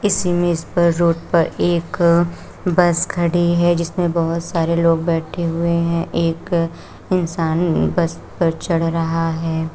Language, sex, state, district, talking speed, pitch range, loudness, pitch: Hindi, female, Uttar Pradesh, Shamli, 130 wpm, 165-175 Hz, -18 LUFS, 170 Hz